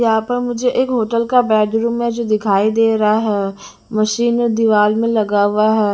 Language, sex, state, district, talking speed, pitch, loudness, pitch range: Hindi, female, Bihar, West Champaran, 190 wpm, 220 Hz, -16 LUFS, 210-235 Hz